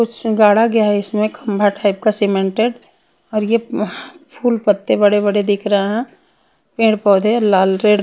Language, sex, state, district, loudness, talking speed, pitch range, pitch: Hindi, female, Bihar, Patna, -16 LUFS, 170 wpm, 205-225 Hz, 210 Hz